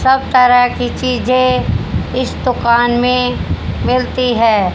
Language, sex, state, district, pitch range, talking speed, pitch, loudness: Hindi, female, Haryana, Jhajjar, 240-255 Hz, 115 wpm, 250 Hz, -14 LUFS